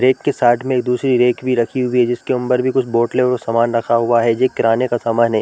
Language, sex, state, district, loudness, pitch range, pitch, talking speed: Hindi, male, Chhattisgarh, Balrampur, -16 LUFS, 115-130 Hz, 125 Hz, 290 wpm